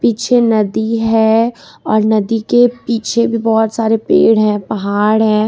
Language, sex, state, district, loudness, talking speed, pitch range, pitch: Hindi, female, Jharkhand, Ranchi, -13 LUFS, 155 wpm, 215-230 Hz, 220 Hz